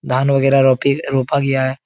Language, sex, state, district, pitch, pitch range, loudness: Hindi, male, Uttar Pradesh, Etah, 135 Hz, 130-135 Hz, -15 LUFS